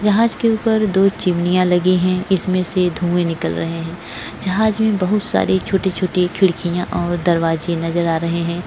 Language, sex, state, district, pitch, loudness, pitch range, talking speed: Hindi, female, Goa, North and South Goa, 180 Hz, -18 LUFS, 170-190 Hz, 175 wpm